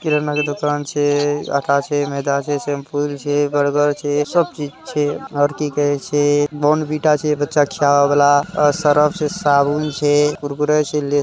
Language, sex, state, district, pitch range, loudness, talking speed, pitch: Hindi, male, Bihar, Araria, 145-150 Hz, -17 LUFS, 160 wpm, 145 Hz